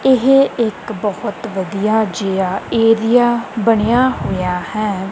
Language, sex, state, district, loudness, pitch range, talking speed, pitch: Punjabi, female, Punjab, Kapurthala, -16 LUFS, 195-235 Hz, 105 wpm, 220 Hz